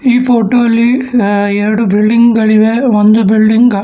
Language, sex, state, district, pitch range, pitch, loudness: Kannada, male, Karnataka, Bangalore, 215-240 Hz, 225 Hz, -9 LUFS